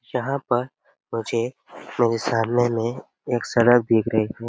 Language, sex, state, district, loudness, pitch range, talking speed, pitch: Hindi, male, Chhattisgarh, Sarguja, -22 LUFS, 115-120 Hz, 160 wpm, 120 Hz